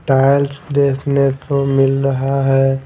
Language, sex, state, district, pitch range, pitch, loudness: Hindi, male, Bihar, Patna, 135-140 Hz, 135 Hz, -15 LUFS